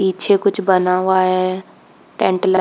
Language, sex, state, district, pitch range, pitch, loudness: Hindi, female, Jharkhand, Jamtara, 185-190 Hz, 185 Hz, -16 LUFS